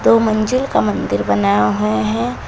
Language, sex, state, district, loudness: Hindi, female, Uttar Pradesh, Shamli, -16 LUFS